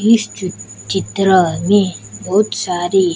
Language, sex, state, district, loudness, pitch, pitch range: Hindi, male, Gujarat, Gandhinagar, -16 LUFS, 190 Hz, 180-200 Hz